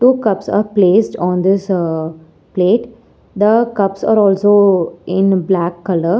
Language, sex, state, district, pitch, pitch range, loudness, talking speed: English, female, Telangana, Hyderabad, 195 Hz, 180-210 Hz, -14 LUFS, 145 wpm